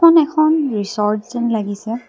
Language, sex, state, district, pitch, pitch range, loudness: Assamese, female, Assam, Kamrup Metropolitan, 235 Hz, 210-310 Hz, -17 LUFS